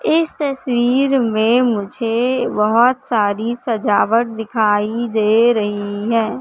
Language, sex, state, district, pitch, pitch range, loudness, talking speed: Hindi, female, Madhya Pradesh, Katni, 230 Hz, 215-245 Hz, -17 LUFS, 105 wpm